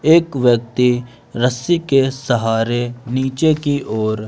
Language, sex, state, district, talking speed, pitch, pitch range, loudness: Hindi, male, Madhya Pradesh, Umaria, 110 wpm, 125 Hz, 120-135 Hz, -17 LUFS